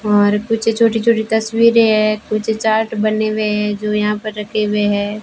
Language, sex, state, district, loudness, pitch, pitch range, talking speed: Hindi, female, Rajasthan, Bikaner, -16 LUFS, 215 Hz, 210-220 Hz, 195 wpm